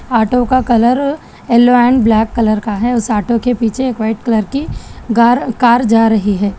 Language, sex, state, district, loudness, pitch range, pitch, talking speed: Hindi, female, Telangana, Hyderabad, -13 LUFS, 220-245 Hz, 235 Hz, 200 wpm